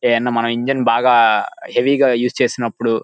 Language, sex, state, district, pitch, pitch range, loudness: Telugu, male, Andhra Pradesh, Guntur, 120 Hz, 115-125 Hz, -16 LUFS